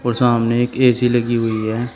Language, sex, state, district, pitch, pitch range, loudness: Hindi, male, Uttar Pradesh, Shamli, 120 Hz, 115-125 Hz, -17 LUFS